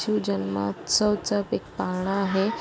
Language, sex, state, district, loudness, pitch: Marathi, female, Maharashtra, Aurangabad, -25 LUFS, 190 Hz